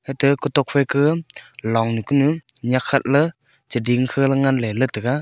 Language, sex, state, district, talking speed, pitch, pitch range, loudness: Wancho, male, Arunachal Pradesh, Longding, 125 wpm, 135 Hz, 125-140 Hz, -20 LUFS